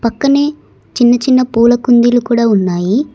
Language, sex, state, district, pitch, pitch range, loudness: Telugu, female, Telangana, Hyderabad, 240 Hz, 235-255 Hz, -11 LUFS